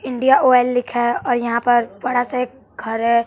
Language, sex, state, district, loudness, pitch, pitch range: Hindi, male, Bihar, West Champaran, -18 LUFS, 245 Hz, 235-250 Hz